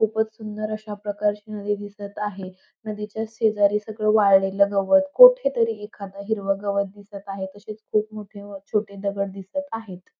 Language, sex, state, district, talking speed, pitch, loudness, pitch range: Marathi, female, Maharashtra, Pune, 160 wpm, 210 Hz, -23 LUFS, 200-215 Hz